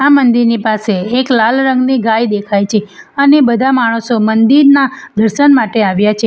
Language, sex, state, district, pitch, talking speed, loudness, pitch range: Gujarati, female, Gujarat, Valsad, 235 Hz, 155 wpm, -11 LUFS, 220-265 Hz